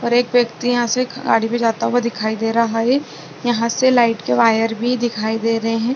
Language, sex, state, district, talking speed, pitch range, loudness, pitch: Hindi, female, Bihar, Saharsa, 230 wpm, 225-245 Hz, -18 LUFS, 235 Hz